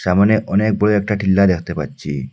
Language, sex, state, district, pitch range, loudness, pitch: Bengali, male, Assam, Hailakandi, 85-105 Hz, -17 LUFS, 100 Hz